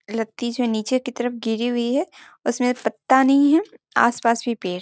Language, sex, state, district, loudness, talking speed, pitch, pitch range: Hindi, female, Bihar, Sitamarhi, -21 LUFS, 210 wpm, 245 Hz, 225-260 Hz